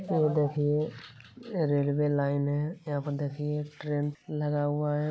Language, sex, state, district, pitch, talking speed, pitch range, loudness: Hindi, male, Bihar, Jamui, 145 Hz, 155 wpm, 145-150 Hz, -30 LUFS